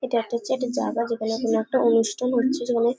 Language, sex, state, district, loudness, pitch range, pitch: Bengali, female, West Bengal, Paschim Medinipur, -23 LUFS, 230-250 Hz, 235 Hz